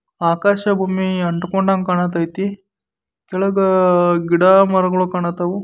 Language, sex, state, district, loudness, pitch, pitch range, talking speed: Kannada, male, Karnataka, Dharwad, -16 LUFS, 185 Hz, 175-195 Hz, 85 wpm